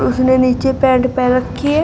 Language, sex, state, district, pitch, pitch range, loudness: Hindi, female, Uttar Pradesh, Shamli, 255 Hz, 255-265 Hz, -14 LUFS